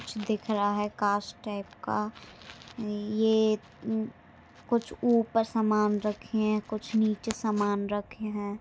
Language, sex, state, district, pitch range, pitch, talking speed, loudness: Hindi, female, Maharashtra, Solapur, 205-220 Hz, 215 Hz, 125 wpm, -29 LUFS